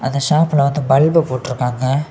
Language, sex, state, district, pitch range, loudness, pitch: Tamil, male, Tamil Nadu, Kanyakumari, 130-150 Hz, -16 LUFS, 140 Hz